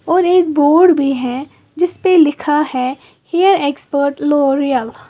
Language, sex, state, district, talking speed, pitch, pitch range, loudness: Hindi, female, Uttar Pradesh, Lalitpur, 155 wpm, 295 Hz, 275-345 Hz, -14 LUFS